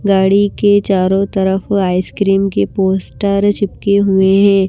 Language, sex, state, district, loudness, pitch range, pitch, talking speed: Hindi, female, Himachal Pradesh, Shimla, -13 LUFS, 190-200 Hz, 195 Hz, 130 wpm